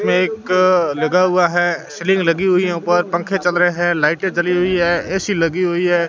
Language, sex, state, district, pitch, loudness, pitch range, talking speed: Hindi, male, Rajasthan, Bikaner, 175 Hz, -16 LUFS, 170-185 Hz, 215 wpm